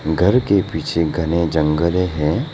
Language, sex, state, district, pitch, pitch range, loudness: Hindi, male, Arunachal Pradesh, Lower Dibang Valley, 85 Hz, 80-90 Hz, -18 LUFS